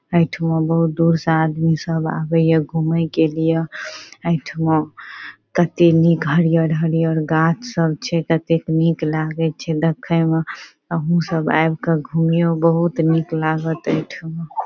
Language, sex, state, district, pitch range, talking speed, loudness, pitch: Maithili, female, Bihar, Saharsa, 160-165 Hz, 140 wpm, -18 LUFS, 165 Hz